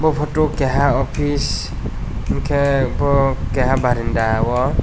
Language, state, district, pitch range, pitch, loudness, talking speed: Kokborok, Tripura, West Tripura, 115-140 Hz, 135 Hz, -19 LUFS, 85 wpm